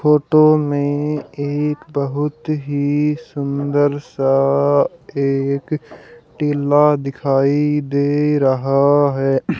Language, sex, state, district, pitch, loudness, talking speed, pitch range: Hindi, male, Haryana, Charkhi Dadri, 145 Hz, -17 LUFS, 80 wpm, 140-150 Hz